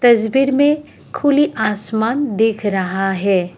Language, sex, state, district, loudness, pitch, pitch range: Hindi, female, Assam, Kamrup Metropolitan, -17 LUFS, 225 Hz, 200-285 Hz